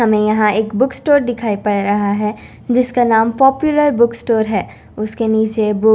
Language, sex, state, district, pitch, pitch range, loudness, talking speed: Hindi, female, Chandigarh, Chandigarh, 220 Hz, 210-245 Hz, -15 LUFS, 190 wpm